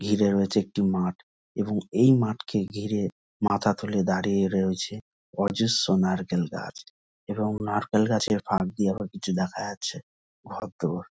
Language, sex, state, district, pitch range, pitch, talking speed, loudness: Bengali, male, West Bengal, North 24 Parganas, 95-105 Hz, 100 Hz, 125 wpm, -26 LUFS